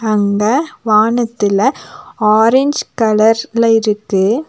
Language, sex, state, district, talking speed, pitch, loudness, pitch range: Tamil, female, Tamil Nadu, Nilgiris, 65 wpm, 220 Hz, -13 LUFS, 210-240 Hz